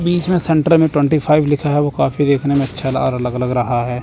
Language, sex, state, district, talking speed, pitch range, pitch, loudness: Hindi, male, Chandigarh, Chandigarh, 255 wpm, 130-155 Hz, 145 Hz, -16 LUFS